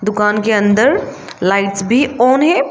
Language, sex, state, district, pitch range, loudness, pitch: Hindi, female, Arunachal Pradesh, Lower Dibang Valley, 205-255 Hz, -13 LUFS, 210 Hz